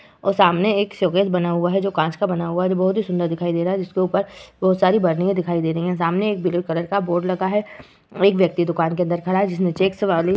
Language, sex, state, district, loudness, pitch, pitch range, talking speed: Hindi, female, Uttar Pradesh, Varanasi, -20 LUFS, 185 Hz, 175-195 Hz, 290 wpm